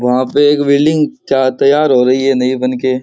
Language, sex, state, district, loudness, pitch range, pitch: Rajasthani, male, Rajasthan, Churu, -12 LUFS, 130-145 Hz, 130 Hz